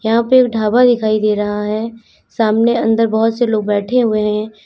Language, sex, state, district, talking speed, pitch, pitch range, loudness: Hindi, female, Uttar Pradesh, Lalitpur, 205 wpm, 220 Hz, 215-235 Hz, -14 LUFS